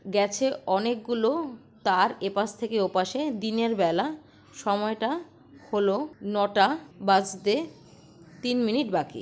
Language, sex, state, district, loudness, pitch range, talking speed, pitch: Bengali, female, West Bengal, Purulia, -27 LUFS, 200-265 Hz, 100 wpm, 225 Hz